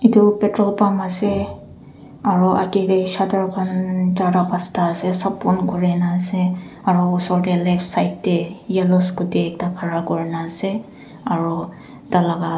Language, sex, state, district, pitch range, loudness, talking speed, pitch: Nagamese, female, Nagaland, Dimapur, 175-190 Hz, -19 LUFS, 145 wpm, 180 Hz